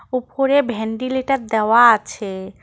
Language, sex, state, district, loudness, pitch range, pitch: Bengali, female, West Bengal, Cooch Behar, -17 LUFS, 220-260 Hz, 240 Hz